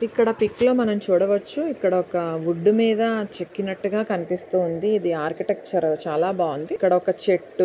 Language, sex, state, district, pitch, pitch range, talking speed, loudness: Telugu, female, Andhra Pradesh, Anantapur, 190 Hz, 175-215 Hz, 135 wpm, -22 LUFS